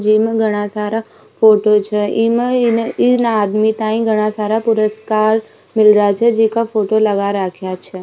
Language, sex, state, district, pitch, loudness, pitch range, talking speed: Rajasthani, female, Rajasthan, Nagaur, 215 Hz, -15 LUFS, 210-225 Hz, 150 wpm